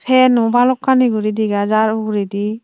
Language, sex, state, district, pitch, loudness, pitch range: Chakma, female, Tripura, Unakoti, 220 Hz, -15 LUFS, 215-250 Hz